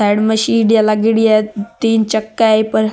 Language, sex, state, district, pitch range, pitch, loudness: Marwari, male, Rajasthan, Nagaur, 215-225 Hz, 220 Hz, -13 LUFS